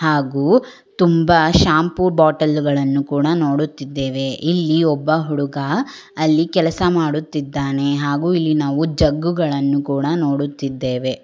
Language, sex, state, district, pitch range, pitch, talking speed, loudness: Kannada, female, Karnataka, Bangalore, 140-165 Hz, 150 Hz, 95 wpm, -17 LUFS